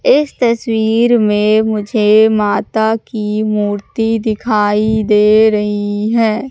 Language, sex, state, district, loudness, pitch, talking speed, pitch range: Hindi, female, Madhya Pradesh, Katni, -13 LUFS, 220 Hz, 100 wpm, 210-225 Hz